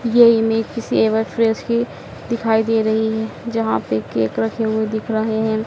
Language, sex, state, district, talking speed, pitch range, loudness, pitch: Hindi, female, Madhya Pradesh, Dhar, 190 wpm, 220-225 Hz, -19 LUFS, 220 Hz